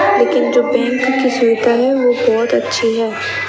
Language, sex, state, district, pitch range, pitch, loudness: Hindi, female, Rajasthan, Bikaner, 230-250 Hz, 245 Hz, -14 LUFS